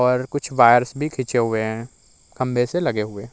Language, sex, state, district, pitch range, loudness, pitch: Hindi, male, Uttar Pradesh, Muzaffarnagar, 115-130 Hz, -20 LUFS, 120 Hz